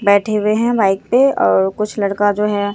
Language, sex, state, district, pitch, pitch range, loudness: Hindi, female, Bihar, Katihar, 205 Hz, 200-215 Hz, -15 LUFS